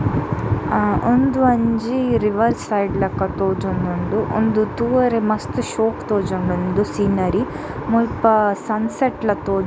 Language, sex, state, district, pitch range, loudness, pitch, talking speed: Tulu, female, Karnataka, Dakshina Kannada, 190-230 Hz, -19 LUFS, 215 Hz, 110 wpm